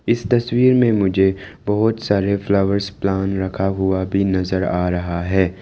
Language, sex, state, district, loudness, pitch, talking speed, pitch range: Hindi, male, Arunachal Pradesh, Lower Dibang Valley, -18 LUFS, 95 Hz, 160 wpm, 95-105 Hz